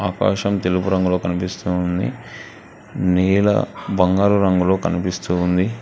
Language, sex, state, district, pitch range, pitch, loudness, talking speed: Telugu, male, Telangana, Hyderabad, 90-95 Hz, 90 Hz, -19 LUFS, 95 wpm